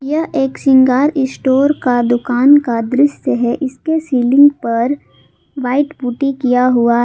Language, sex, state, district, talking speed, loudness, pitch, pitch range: Hindi, female, Jharkhand, Palamu, 135 wpm, -14 LUFS, 265 Hz, 245-285 Hz